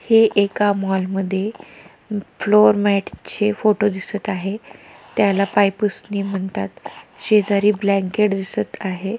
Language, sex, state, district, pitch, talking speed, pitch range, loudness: Marathi, female, Maharashtra, Pune, 205 Hz, 100 wpm, 195-210 Hz, -19 LUFS